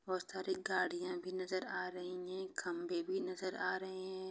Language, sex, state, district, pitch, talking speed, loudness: Hindi, female, Chhattisgarh, Bastar, 190 Hz, 195 wpm, -41 LUFS